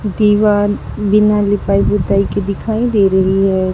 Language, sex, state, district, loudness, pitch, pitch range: Hindi, female, Uttar Pradesh, Saharanpur, -14 LUFS, 205 Hz, 195-210 Hz